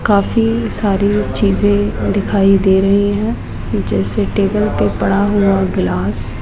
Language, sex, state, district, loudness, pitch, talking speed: Hindi, female, Rajasthan, Jaipur, -15 LUFS, 195 Hz, 130 wpm